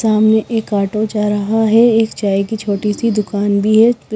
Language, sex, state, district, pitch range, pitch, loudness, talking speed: Hindi, female, Himachal Pradesh, Shimla, 205-220 Hz, 215 Hz, -14 LUFS, 215 wpm